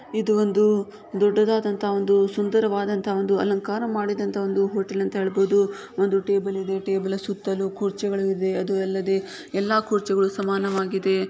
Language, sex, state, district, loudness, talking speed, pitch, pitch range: Kannada, female, Karnataka, Shimoga, -23 LUFS, 120 wpm, 200 Hz, 195-205 Hz